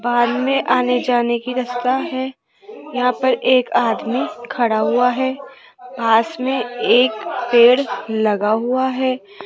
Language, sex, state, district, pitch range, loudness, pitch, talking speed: Hindi, female, Rajasthan, Jaipur, 235-260 Hz, -18 LUFS, 250 Hz, 125 wpm